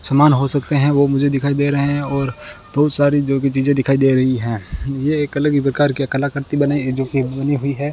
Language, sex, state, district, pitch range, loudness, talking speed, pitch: Hindi, male, Rajasthan, Bikaner, 135-145 Hz, -17 LUFS, 255 wpm, 140 Hz